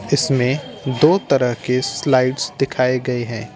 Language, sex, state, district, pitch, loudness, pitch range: Hindi, male, Uttar Pradesh, Varanasi, 130 Hz, -18 LUFS, 125-140 Hz